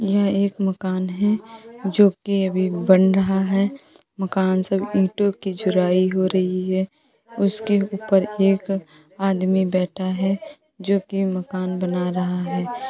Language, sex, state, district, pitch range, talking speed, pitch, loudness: Hindi, female, Uttar Pradesh, Jalaun, 185-200 Hz, 130 wpm, 195 Hz, -21 LUFS